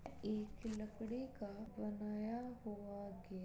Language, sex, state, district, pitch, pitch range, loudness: Hindi, female, Uttar Pradesh, Jalaun, 215 Hz, 205-225 Hz, -47 LUFS